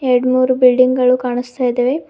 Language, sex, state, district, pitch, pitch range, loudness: Kannada, female, Karnataka, Bidar, 255 Hz, 250-255 Hz, -14 LUFS